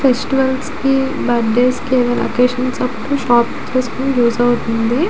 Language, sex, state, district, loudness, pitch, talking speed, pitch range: Telugu, female, Andhra Pradesh, Visakhapatnam, -16 LUFS, 255 Hz, 140 wpm, 240-265 Hz